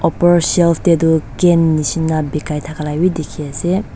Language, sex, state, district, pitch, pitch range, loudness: Nagamese, female, Nagaland, Dimapur, 160 Hz, 150-175 Hz, -15 LUFS